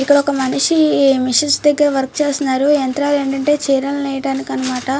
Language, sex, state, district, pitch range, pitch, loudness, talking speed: Telugu, female, Andhra Pradesh, Srikakulam, 270-290 Hz, 275 Hz, -15 LUFS, 145 wpm